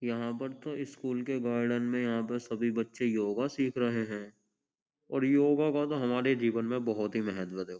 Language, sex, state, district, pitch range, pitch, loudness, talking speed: Hindi, male, Uttar Pradesh, Jyotiba Phule Nagar, 115-135 Hz, 120 Hz, -32 LUFS, 190 wpm